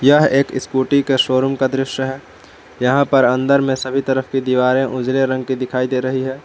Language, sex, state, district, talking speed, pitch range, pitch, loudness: Hindi, male, Jharkhand, Palamu, 215 wpm, 130-135 Hz, 130 Hz, -17 LUFS